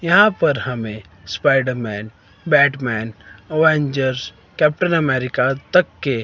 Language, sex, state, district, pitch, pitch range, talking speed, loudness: Hindi, male, Himachal Pradesh, Shimla, 130 Hz, 115-155 Hz, 105 wpm, -18 LUFS